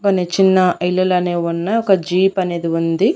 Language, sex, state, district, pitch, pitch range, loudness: Telugu, female, Andhra Pradesh, Annamaya, 180 Hz, 170-190 Hz, -16 LUFS